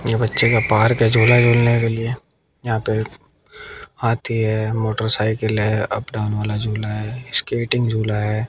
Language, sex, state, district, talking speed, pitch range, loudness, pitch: Hindi, male, Haryana, Jhajjar, 160 wpm, 110-115 Hz, -18 LUFS, 110 Hz